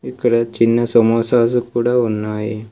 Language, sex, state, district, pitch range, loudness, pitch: Telugu, male, Telangana, Komaram Bheem, 115-120 Hz, -16 LUFS, 115 Hz